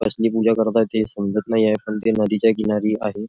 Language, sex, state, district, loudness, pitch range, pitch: Marathi, male, Maharashtra, Nagpur, -20 LUFS, 105-110 Hz, 110 Hz